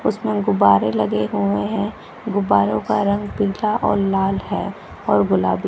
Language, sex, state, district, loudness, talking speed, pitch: Hindi, female, Bihar, West Champaran, -19 LUFS, 150 wpm, 195 Hz